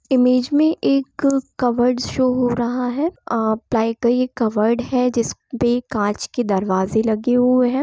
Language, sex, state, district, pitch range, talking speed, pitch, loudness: Hindi, female, Bihar, Gopalganj, 225-255 Hz, 175 wpm, 245 Hz, -19 LUFS